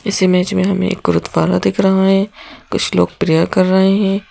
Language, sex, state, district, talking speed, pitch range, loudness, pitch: Hindi, female, Madhya Pradesh, Bhopal, 210 wpm, 185-200 Hz, -15 LUFS, 195 Hz